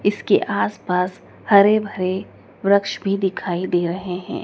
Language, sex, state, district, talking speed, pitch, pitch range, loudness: Hindi, female, Madhya Pradesh, Dhar, 150 wpm, 190 Hz, 180-200 Hz, -20 LUFS